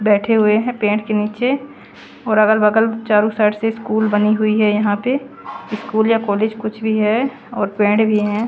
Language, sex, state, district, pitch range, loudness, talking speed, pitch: Hindi, female, Haryana, Charkhi Dadri, 210-225 Hz, -17 LUFS, 200 wpm, 215 Hz